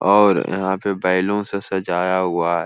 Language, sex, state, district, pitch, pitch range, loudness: Hindi, male, Uttar Pradesh, Hamirpur, 95 Hz, 90-100 Hz, -19 LUFS